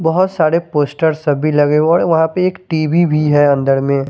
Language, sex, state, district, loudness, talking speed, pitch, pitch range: Hindi, male, Chandigarh, Chandigarh, -14 LUFS, 220 wpm, 155 Hz, 145-165 Hz